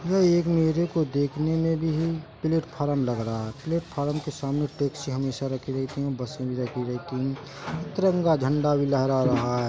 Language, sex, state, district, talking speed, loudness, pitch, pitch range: Hindi, male, Chhattisgarh, Bilaspur, 185 wpm, -26 LUFS, 145 Hz, 130-160 Hz